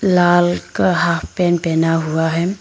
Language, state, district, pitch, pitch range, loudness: Hindi, Arunachal Pradesh, Lower Dibang Valley, 175 Hz, 165-175 Hz, -16 LUFS